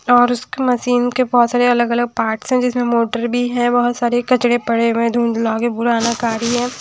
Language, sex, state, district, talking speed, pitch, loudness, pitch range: Hindi, female, Odisha, Sambalpur, 220 wpm, 240 Hz, -16 LUFS, 235-245 Hz